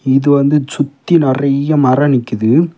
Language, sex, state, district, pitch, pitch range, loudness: Tamil, male, Tamil Nadu, Kanyakumari, 140 Hz, 135-150 Hz, -13 LUFS